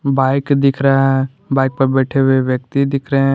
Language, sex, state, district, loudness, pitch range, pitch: Hindi, male, Jharkhand, Garhwa, -15 LUFS, 135-140 Hz, 135 Hz